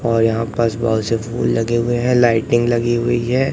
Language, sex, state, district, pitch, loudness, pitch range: Hindi, male, Madhya Pradesh, Katni, 120 Hz, -17 LUFS, 115-120 Hz